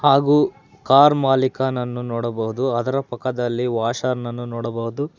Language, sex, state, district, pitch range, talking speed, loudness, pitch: Kannada, male, Karnataka, Bangalore, 120-135 Hz, 95 wpm, -20 LUFS, 125 Hz